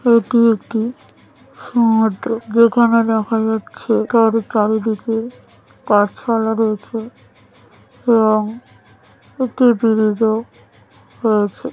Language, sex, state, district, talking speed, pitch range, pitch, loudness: Bengali, male, West Bengal, Kolkata, 75 wpm, 220-235 Hz, 225 Hz, -16 LUFS